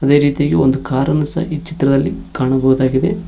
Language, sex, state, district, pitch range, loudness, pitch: Kannada, male, Karnataka, Koppal, 130-155 Hz, -15 LUFS, 140 Hz